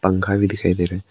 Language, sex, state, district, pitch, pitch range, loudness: Hindi, male, Arunachal Pradesh, Papum Pare, 95 Hz, 90-100 Hz, -20 LUFS